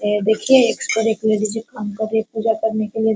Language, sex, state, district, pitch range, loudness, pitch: Hindi, female, Bihar, Araria, 215-225 Hz, -18 LUFS, 220 Hz